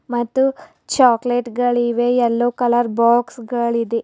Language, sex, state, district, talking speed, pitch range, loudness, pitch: Kannada, female, Karnataka, Bidar, 105 wpm, 235-245 Hz, -17 LUFS, 240 Hz